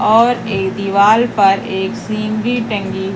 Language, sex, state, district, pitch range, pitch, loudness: Hindi, female, Madhya Pradesh, Katni, 195-225 Hz, 210 Hz, -15 LUFS